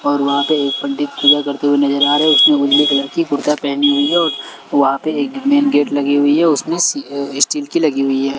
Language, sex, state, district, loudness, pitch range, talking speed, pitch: Hindi, male, Delhi, New Delhi, -14 LUFS, 140-150 Hz, 255 wpm, 145 Hz